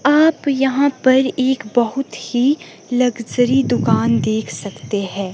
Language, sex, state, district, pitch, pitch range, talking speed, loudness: Hindi, female, Himachal Pradesh, Shimla, 250 Hz, 205-270 Hz, 125 wpm, -17 LUFS